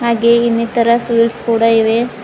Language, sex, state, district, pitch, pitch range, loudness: Kannada, female, Karnataka, Bidar, 235 Hz, 230-235 Hz, -13 LUFS